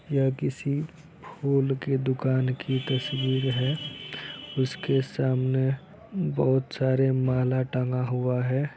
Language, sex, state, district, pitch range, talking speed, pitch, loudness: Hindi, male, Bihar, Araria, 130-140 Hz, 110 wpm, 135 Hz, -27 LUFS